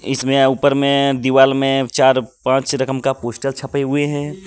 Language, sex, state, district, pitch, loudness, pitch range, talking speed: Hindi, male, Jharkhand, Deoghar, 135 Hz, -16 LUFS, 130-140 Hz, 175 wpm